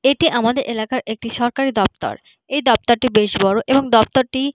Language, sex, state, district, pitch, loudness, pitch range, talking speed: Bengali, female, West Bengal, Purulia, 240 Hz, -17 LUFS, 225-270 Hz, 170 wpm